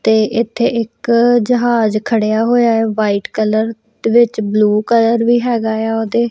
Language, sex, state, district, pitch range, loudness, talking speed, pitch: Punjabi, female, Punjab, Kapurthala, 220-235 Hz, -14 LUFS, 160 wpm, 225 Hz